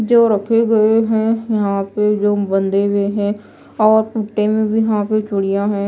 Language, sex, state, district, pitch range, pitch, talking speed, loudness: Hindi, female, Maharashtra, Gondia, 200-220 Hz, 210 Hz, 185 wpm, -16 LUFS